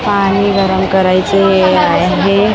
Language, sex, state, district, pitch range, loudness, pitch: Marathi, female, Maharashtra, Mumbai Suburban, 190-200 Hz, -11 LUFS, 195 Hz